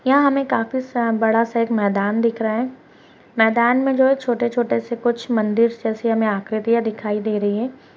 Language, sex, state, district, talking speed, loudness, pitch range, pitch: Hindi, female, Bihar, Darbhanga, 205 wpm, -19 LUFS, 220-245 Hz, 230 Hz